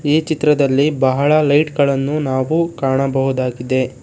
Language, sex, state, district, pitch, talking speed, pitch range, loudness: Kannada, male, Karnataka, Bangalore, 140 Hz, 105 wpm, 130-150 Hz, -16 LUFS